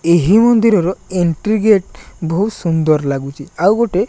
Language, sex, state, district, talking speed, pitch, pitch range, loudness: Odia, male, Odisha, Nuapada, 145 wpm, 185 Hz, 165-215 Hz, -14 LUFS